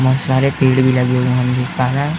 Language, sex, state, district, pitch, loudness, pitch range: Hindi, male, Uttar Pradesh, Etah, 130 Hz, -15 LUFS, 125-135 Hz